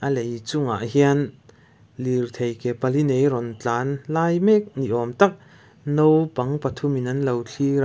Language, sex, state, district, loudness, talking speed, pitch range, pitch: Mizo, male, Mizoram, Aizawl, -22 LUFS, 170 wpm, 120-145 Hz, 135 Hz